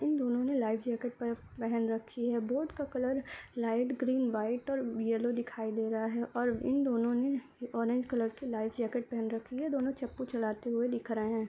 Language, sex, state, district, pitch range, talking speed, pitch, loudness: Hindi, male, Uttar Pradesh, Hamirpur, 225-255 Hz, 205 wpm, 240 Hz, -34 LUFS